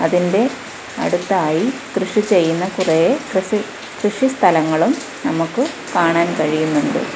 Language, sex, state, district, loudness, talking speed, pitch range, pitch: Malayalam, female, Kerala, Kollam, -17 LUFS, 90 wpm, 165-230 Hz, 190 Hz